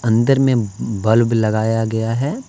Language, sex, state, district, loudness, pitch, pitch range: Hindi, male, Jharkhand, Deoghar, -17 LUFS, 115 Hz, 110-125 Hz